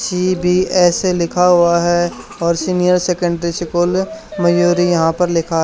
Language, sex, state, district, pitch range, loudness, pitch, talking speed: Hindi, male, Haryana, Charkhi Dadri, 170-180 Hz, -15 LUFS, 175 Hz, 140 wpm